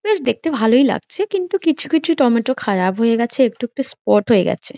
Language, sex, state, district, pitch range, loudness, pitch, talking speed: Bengali, female, West Bengal, Jhargram, 230-325 Hz, -17 LUFS, 260 Hz, 215 wpm